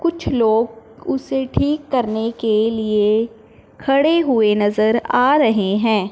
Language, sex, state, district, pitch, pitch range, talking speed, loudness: Hindi, female, Punjab, Fazilka, 225 Hz, 215-265 Hz, 125 wpm, -17 LUFS